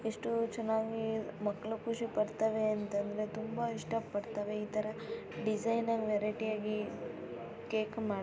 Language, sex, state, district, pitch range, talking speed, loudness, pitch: Kannada, female, Karnataka, Belgaum, 210-225 Hz, 110 wpm, -36 LUFS, 220 Hz